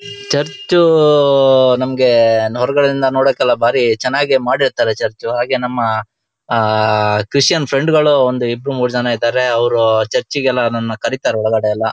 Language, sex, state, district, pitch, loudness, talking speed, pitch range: Kannada, male, Karnataka, Shimoga, 125 Hz, -14 LUFS, 140 wpm, 115-140 Hz